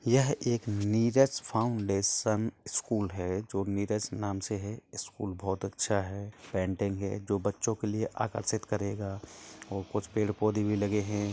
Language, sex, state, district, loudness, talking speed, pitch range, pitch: Hindi, male, Chhattisgarh, Rajnandgaon, -31 LUFS, 160 wpm, 100-110 Hz, 105 Hz